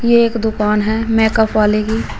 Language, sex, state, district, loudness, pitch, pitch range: Hindi, female, Uttar Pradesh, Shamli, -15 LUFS, 220 Hz, 215-225 Hz